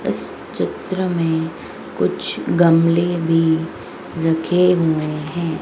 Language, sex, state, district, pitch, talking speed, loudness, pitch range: Hindi, female, Madhya Pradesh, Dhar, 165 Hz, 95 wpm, -18 LUFS, 160-175 Hz